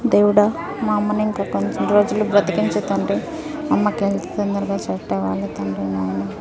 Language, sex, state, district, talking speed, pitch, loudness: Telugu, female, Telangana, Nalgonda, 160 wpm, 200 Hz, -20 LUFS